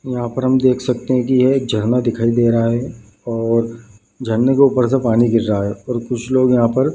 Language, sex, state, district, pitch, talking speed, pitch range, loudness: Hindi, male, Bihar, Madhepura, 120 Hz, 260 wpm, 115-130 Hz, -16 LUFS